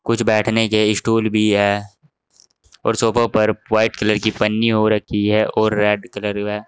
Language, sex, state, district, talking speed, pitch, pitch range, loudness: Hindi, male, Uttar Pradesh, Saharanpur, 180 wpm, 110 Hz, 105-115 Hz, -17 LUFS